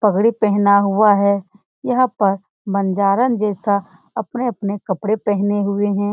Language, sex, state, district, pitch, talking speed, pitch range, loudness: Hindi, female, Bihar, Saran, 205 Hz, 135 wpm, 200-215 Hz, -18 LUFS